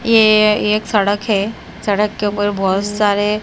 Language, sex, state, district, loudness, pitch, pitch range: Hindi, female, Himachal Pradesh, Shimla, -15 LUFS, 205 Hz, 205-215 Hz